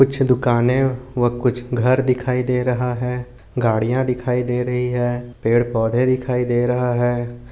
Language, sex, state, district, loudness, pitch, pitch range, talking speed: Hindi, male, Maharashtra, Aurangabad, -19 LUFS, 125 Hz, 120-125 Hz, 160 wpm